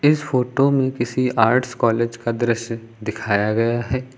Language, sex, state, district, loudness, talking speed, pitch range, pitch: Hindi, male, Uttar Pradesh, Lucknow, -20 LUFS, 160 wpm, 115-130 Hz, 120 Hz